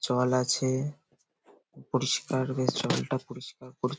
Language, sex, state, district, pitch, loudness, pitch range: Bengali, male, West Bengal, Paschim Medinipur, 130 Hz, -29 LUFS, 125-130 Hz